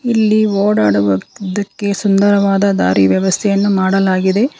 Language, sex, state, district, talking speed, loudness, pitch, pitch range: Kannada, female, Karnataka, Bangalore, 80 wpm, -14 LUFS, 200 Hz, 190-205 Hz